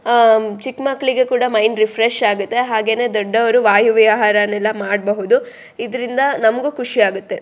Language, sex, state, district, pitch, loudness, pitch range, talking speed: Kannada, female, Karnataka, Shimoga, 225 Hz, -15 LUFS, 210-250 Hz, 120 wpm